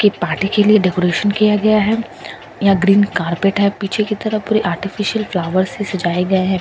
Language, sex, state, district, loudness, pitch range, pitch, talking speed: Hindi, female, Bihar, Katihar, -16 LUFS, 185-210 Hz, 200 Hz, 225 wpm